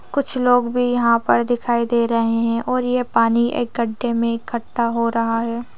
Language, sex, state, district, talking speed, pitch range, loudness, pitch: Hindi, female, Bihar, Purnia, 195 wpm, 230-245 Hz, -19 LUFS, 235 Hz